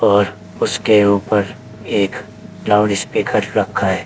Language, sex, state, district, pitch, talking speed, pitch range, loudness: Hindi, male, Uttar Pradesh, Saharanpur, 105 Hz, 105 wpm, 100-105 Hz, -16 LUFS